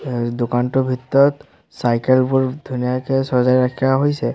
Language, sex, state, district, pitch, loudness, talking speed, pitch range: Assamese, male, Assam, Sonitpur, 130 Hz, -18 LUFS, 110 wpm, 125-135 Hz